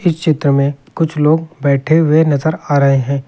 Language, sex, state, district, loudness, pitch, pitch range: Hindi, male, Uttar Pradesh, Lucknow, -14 LUFS, 150 Hz, 140-160 Hz